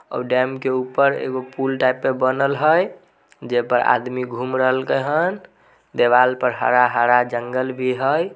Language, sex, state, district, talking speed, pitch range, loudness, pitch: Maithili, male, Bihar, Samastipur, 165 wpm, 125-130 Hz, -19 LUFS, 130 Hz